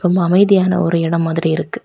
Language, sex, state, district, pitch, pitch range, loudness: Tamil, female, Tamil Nadu, Kanyakumari, 175 Hz, 165-185 Hz, -15 LUFS